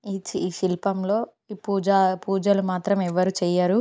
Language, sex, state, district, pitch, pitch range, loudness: Telugu, female, Telangana, Karimnagar, 195 Hz, 185-200 Hz, -23 LUFS